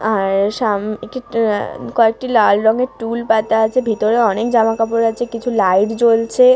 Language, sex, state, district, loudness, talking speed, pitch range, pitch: Bengali, female, West Bengal, Dakshin Dinajpur, -16 LUFS, 165 wpm, 215-235 Hz, 225 Hz